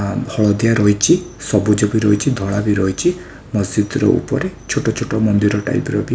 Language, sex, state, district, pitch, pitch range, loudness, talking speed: Odia, male, Odisha, Khordha, 105 Hz, 105-125 Hz, -17 LUFS, 175 wpm